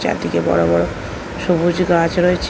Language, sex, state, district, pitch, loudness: Bengali, female, West Bengal, North 24 Parganas, 115 Hz, -17 LUFS